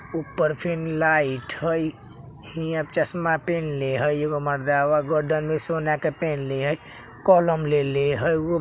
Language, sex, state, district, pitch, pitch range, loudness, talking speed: Bajjika, male, Bihar, Vaishali, 155 Hz, 145-160 Hz, -23 LUFS, 145 wpm